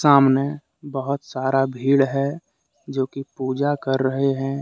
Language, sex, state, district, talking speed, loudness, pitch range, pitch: Hindi, male, Jharkhand, Deoghar, 145 wpm, -22 LUFS, 135-140 Hz, 135 Hz